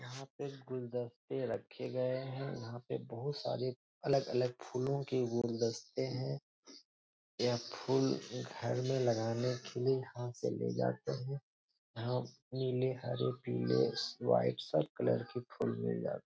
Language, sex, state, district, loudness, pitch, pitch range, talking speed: Hindi, male, Bihar, Jahanabad, -37 LUFS, 125 Hz, 115-130 Hz, 145 wpm